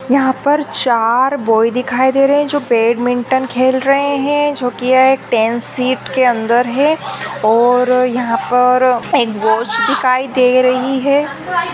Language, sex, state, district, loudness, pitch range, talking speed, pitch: Hindi, female, Maharashtra, Sindhudurg, -14 LUFS, 245-275 Hz, 155 wpm, 255 Hz